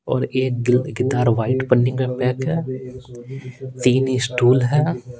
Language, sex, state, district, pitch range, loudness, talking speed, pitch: Hindi, male, Bihar, Patna, 125-130 Hz, -19 LUFS, 125 wpm, 130 Hz